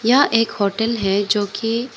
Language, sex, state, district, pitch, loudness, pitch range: Hindi, female, Arunachal Pradesh, Lower Dibang Valley, 225 Hz, -18 LUFS, 205-230 Hz